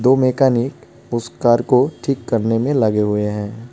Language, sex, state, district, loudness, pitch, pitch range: Hindi, male, West Bengal, Alipurduar, -18 LUFS, 120 Hz, 115-130 Hz